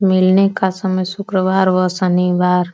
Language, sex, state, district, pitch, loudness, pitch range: Bhojpuri, female, Uttar Pradesh, Deoria, 185 Hz, -15 LUFS, 180-190 Hz